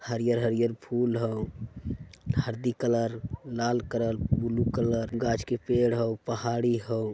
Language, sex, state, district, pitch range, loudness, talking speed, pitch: Magahi, male, Bihar, Jamui, 115-120 Hz, -29 LUFS, 145 wpm, 115 Hz